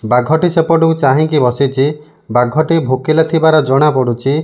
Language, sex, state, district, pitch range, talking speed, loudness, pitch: Odia, male, Odisha, Malkangiri, 130-160 Hz, 120 wpm, -12 LUFS, 150 Hz